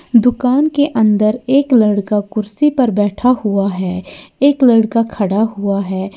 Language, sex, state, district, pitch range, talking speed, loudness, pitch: Hindi, female, Uttar Pradesh, Lalitpur, 205-250 Hz, 145 wpm, -14 LUFS, 220 Hz